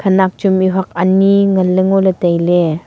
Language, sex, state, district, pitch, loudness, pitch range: Wancho, female, Arunachal Pradesh, Longding, 190 Hz, -13 LUFS, 175-195 Hz